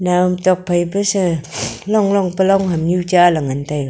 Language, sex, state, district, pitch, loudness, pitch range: Wancho, female, Arunachal Pradesh, Longding, 180 Hz, -16 LUFS, 160-190 Hz